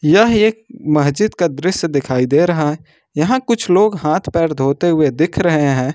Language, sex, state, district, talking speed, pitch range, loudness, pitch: Hindi, male, Jharkhand, Ranchi, 190 wpm, 150-190 Hz, -15 LUFS, 160 Hz